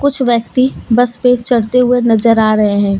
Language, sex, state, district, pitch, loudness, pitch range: Hindi, female, Jharkhand, Deoghar, 235 Hz, -12 LUFS, 225-250 Hz